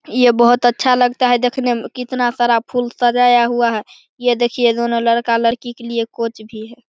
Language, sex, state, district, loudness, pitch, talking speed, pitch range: Hindi, male, Bihar, Begusarai, -16 LUFS, 240 Hz, 190 wpm, 235-245 Hz